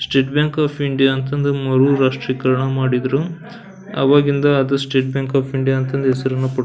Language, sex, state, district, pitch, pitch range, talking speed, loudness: Kannada, male, Karnataka, Belgaum, 135 Hz, 130-145 Hz, 170 wpm, -17 LUFS